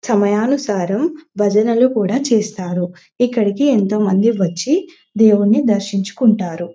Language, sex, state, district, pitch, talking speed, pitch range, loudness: Telugu, female, Telangana, Nalgonda, 210 Hz, 90 wpm, 200-245 Hz, -16 LUFS